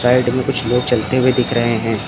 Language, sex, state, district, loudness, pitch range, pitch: Hindi, female, Uttar Pradesh, Lucknow, -16 LUFS, 120-125 Hz, 125 Hz